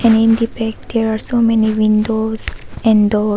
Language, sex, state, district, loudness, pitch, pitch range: English, female, Arunachal Pradesh, Papum Pare, -15 LUFS, 220 Hz, 215-225 Hz